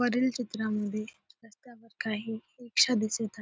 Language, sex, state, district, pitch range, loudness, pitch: Marathi, female, Maharashtra, Solapur, 215-245 Hz, -30 LUFS, 225 Hz